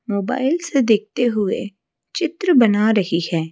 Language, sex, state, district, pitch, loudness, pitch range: Hindi, female, Odisha, Malkangiri, 220 Hz, -18 LUFS, 200-270 Hz